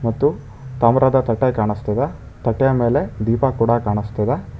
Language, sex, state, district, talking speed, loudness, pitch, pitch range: Kannada, male, Karnataka, Bangalore, 115 wpm, -19 LUFS, 115 Hz, 110-130 Hz